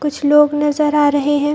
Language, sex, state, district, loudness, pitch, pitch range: Hindi, female, Chhattisgarh, Bilaspur, -14 LUFS, 295 Hz, 290-295 Hz